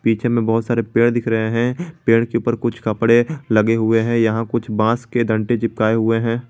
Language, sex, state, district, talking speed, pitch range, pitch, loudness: Hindi, male, Jharkhand, Garhwa, 220 wpm, 115-120 Hz, 115 Hz, -18 LUFS